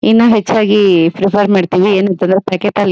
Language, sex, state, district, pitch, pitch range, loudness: Kannada, female, Karnataka, Mysore, 195 Hz, 185-205 Hz, -11 LUFS